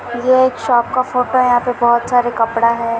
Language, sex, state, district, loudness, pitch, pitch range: Hindi, female, Chhattisgarh, Bilaspur, -14 LUFS, 245 Hz, 235-250 Hz